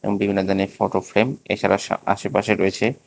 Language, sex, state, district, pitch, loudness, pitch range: Bengali, male, Tripura, West Tripura, 100 Hz, -21 LUFS, 95-105 Hz